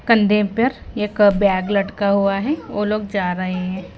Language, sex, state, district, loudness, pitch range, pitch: Hindi, female, Himachal Pradesh, Shimla, -19 LUFS, 195-210 Hz, 205 Hz